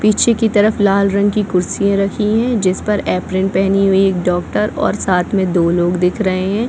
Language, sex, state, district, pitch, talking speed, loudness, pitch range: Hindi, female, Chhattisgarh, Bilaspur, 195 Hz, 215 wpm, -15 LUFS, 185-210 Hz